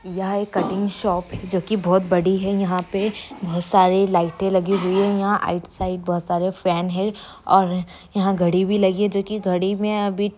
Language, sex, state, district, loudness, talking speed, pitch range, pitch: Hindi, female, Bihar, Bhagalpur, -21 LUFS, 200 wpm, 180-200 Hz, 190 Hz